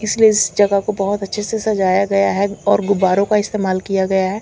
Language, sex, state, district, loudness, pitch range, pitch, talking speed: Hindi, female, Chandigarh, Chandigarh, -16 LUFS, 195-210 Hz, 200 Hz, 230 wpm